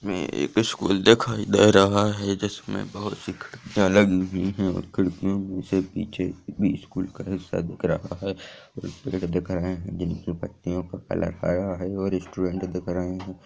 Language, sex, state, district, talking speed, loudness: Hindi, male, Bihar, Lakhisarai, 160 wpm, -25 LUFS